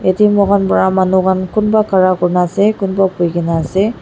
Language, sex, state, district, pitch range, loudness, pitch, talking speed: Nagamese, female, Nagaland, Dimapur, 180-200 Hz, -13 LUFS, 190 Hz, 210 wpm